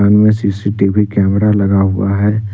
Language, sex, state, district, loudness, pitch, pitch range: Hindi, male, Jharkhand, Ranchi, -13 LUFS, 100 Hz, 100-105 Hz